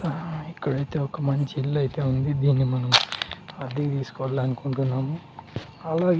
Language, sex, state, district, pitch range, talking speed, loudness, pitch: Telugu, male, Andhra Pradesh, Sri Satya Sai, 135-155 Hz, 125 wpm, -25 LUFS, 140 Hz